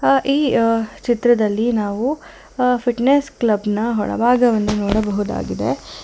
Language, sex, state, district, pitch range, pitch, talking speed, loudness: Kannada, female, Karnataka, Bangalore, 215-250 Hz, 235 Hz, 110 wpm, -18 LUFS